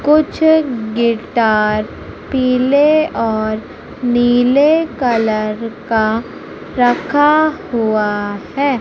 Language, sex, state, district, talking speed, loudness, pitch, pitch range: Hindi, female, Madhya Pradesh, Umaria, 70 wpm, -15 LUFS, 240 Hz, 220-285 Hz